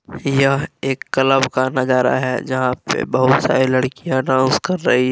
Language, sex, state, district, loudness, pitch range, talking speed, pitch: Hindi, male, Jharkhand, Deoghar, -17 LUFS, 130-135 Hz, 175 wpm, 130 Hz